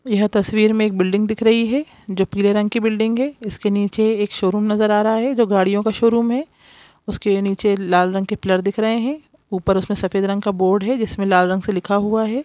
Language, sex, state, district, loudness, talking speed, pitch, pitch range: Hindi, female, Bihar, Jamui, -18 LUFS, 240 wpm, 210 Hz, 195-225 Hz